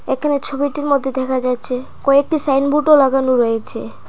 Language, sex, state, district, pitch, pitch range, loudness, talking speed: Bengali, female, Tripura, Dhalai, 270 Hz, 250-285 Hz, -15 LUFS, 130 wpm